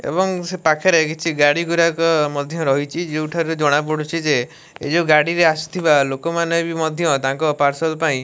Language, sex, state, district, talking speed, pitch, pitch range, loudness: Odia, male, Odisha, Malkangiri, 145 wpm, 160 Hz, 150-170 Hz, -18 LUFS